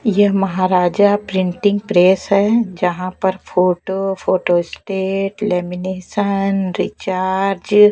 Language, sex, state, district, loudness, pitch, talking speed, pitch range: Hindi, female, Bihar, West Champaran, -17 LUFS, 190 Hz, 100 wpm, 185-200 Hz